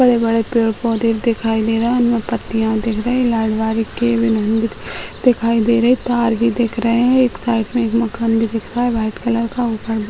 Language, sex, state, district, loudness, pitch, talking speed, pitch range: Hindi, female, Bihar, Sitamarhi, -17 LUFS, 230 Hz, 215 wpm, 225-235 Hz